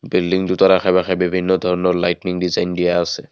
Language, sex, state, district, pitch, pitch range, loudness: Assamese, male, Assam, Kamrup Metropolitan, 90 Hz, 90-95 Hz, -17 LUFS